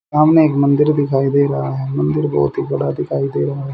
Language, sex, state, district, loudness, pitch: Hindi, male, Haryana, Rohtak, -16 LUFS, 135 Hz